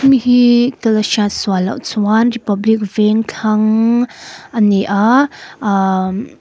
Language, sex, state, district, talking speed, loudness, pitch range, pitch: Mizo, female, Mizoram, Aizawl, 130 wpm, -14 LUFS, 205-240 Hz, 220 Hz